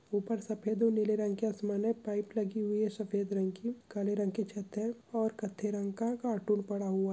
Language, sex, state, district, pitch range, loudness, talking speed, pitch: Hindi, male, Chhattisgarh, Kabirdham, 205-220 Hz, -34 LUFS, 225 wpm, 210 Hz